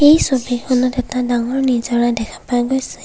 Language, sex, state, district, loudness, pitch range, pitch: Assamese, female, Assam, Kamrup Metropolitan, -17 LUFS, 240-260 Hz, 250 Hz